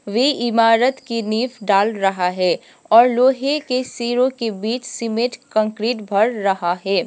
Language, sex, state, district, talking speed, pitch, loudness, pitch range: Hindi, female, Sikkim, Gangtok, 155 wpm, 230 Hz, -18 LUFS, 205-245 Hz